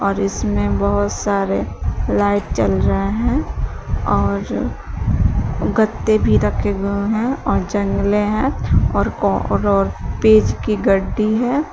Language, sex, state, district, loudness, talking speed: Hindi, female, Uttar Pradesh, Shamli, -18 LUFS, 110 wpm